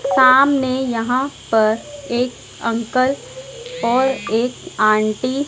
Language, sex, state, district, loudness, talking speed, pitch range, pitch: Hindi, female, Madhya Pradesh, Dhar, -18 LUFS, 100 wpm, 230-270 Hz, 255 Hz